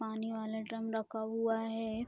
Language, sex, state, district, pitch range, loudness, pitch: Hindi, female, Bihar, Araria, 220-225 Hz, -37 LUFS, 225 Hz